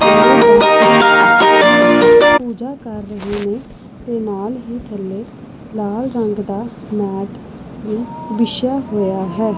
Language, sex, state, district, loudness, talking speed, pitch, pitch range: Punjabi, female, Punjab, Pathankot, -13 LUFS, 100 wpm, 210 Hz, 195-235 Hz